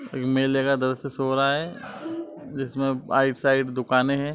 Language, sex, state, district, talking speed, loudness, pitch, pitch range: Hindi, male, Uttar Pradesh, Etah, 140 wpm, -24 LUFS, 135 Hz, 130-140 Hz